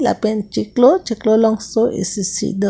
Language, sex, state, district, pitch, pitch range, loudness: Karbi, female, Assam, Karbi Anglong, 220 Hz, 205-230 Hz, -17 LUFS